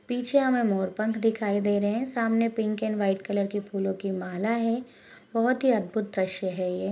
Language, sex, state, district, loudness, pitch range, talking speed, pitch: Hindi, female, Uttarakhand, Tehri Garhwal, -27 LUFS, 195-230 Hz, 210 wpm, 215 Hz